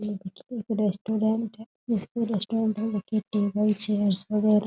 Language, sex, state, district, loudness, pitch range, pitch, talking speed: Hindi, female, Bihar, Muzaffarpur, -23 LUFS, 205-220 Hz, 215 Hz, 155 wpm